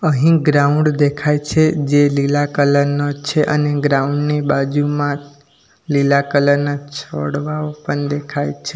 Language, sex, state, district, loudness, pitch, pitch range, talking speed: Gujarati, male, Gujarat, Valsad, -16 LUFS, 145 Hz, 140-150 Hz, 135 wpm